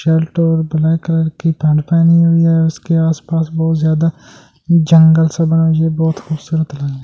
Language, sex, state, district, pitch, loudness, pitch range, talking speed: Hindi, male, Delhi, New Delhi, 160 Hz, -13 LUFS, 160-165 Hz, 205 wpm